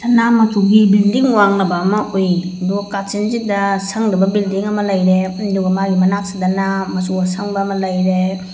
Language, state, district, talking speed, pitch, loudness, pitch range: Manipuri, Manipur, Imphal West, 135 wpm, 195 Hz, -15 LUFS, 185-205 Hz